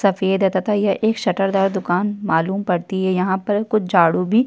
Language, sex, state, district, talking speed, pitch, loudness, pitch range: Hindi, female, Uttar Pradesh, Jyotiba Phule Nagar, 230 wpm, 195 Hz, -19 LUFS, 185-205 Hz